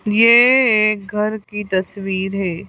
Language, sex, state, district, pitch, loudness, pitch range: Hindi, female, Madhya Pradesh, Bhopal, 210 Hz, -16 LUFS, 195-215 Hz